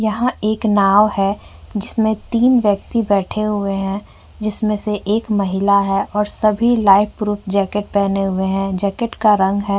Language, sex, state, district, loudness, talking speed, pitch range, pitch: Hindi, female, Uttar Pradesh, Jyotiba Phule Nagar, -17 LUFS, 170 wpm, 195-215 Hz, 205 Hz